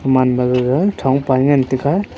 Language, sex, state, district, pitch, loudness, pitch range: Wancho, male, Arunachal Pradesh, Longding, 130 Hz, -15 LUFS, 130-145 Hz